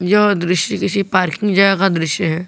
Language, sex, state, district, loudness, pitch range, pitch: Hindi, male, Jharkhand, Garhwa, -15 LUFS, 180-200 Hz, 190 Hz